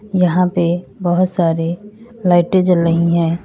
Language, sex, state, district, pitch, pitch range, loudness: Hindi, female, Uttar Pradesh, Lalitpur, 180 Hz, 170-185 Hz, -15 LUFS